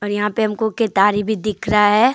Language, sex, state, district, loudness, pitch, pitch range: Hindi, female, Jharkhand, Deoghar, -17 LUFS, 210 Hz, 205-220 Hz